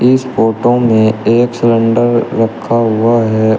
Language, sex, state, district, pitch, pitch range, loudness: Hindi, male, Uttar Pradesh, Shamli, 115 Hz, 110-120 Hz, -12 LUFS